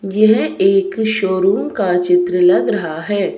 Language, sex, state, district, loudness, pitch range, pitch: Hindi, female, Himachal Pradesh, Shimla, -15 LUFS, 180-205 Hz, 195 Hz